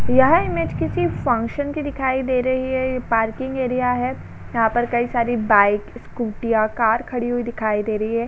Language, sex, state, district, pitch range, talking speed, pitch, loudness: Hindi, female, Uttar Pradesh, Jalaun, 220-255 Hz, 195 wpm, 240 Hz, -20 LUFS